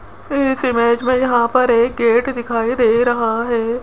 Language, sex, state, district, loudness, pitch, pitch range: Hindi, female, Rajasthan, Jaipur, -16 LUFS, 240 Hz, 235-255 Hz